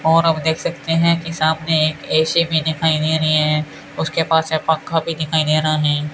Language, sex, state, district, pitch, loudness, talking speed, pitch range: Hindi, male, Rajasthan, Bikaner, 160 Hz, -18 LUFS, 225 wpm, 155-165 Hz